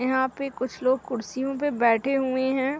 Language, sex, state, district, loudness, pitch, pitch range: Hindi, female, Uttar Pradesh, Hamirpur, -25 LUFS, 260 Hz, 255-275 Hz